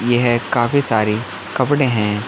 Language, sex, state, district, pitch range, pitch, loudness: Hindi, male, Chhattisgarh, Bilaspur, 105-125 Hz, 120 Hz, -17 LUFS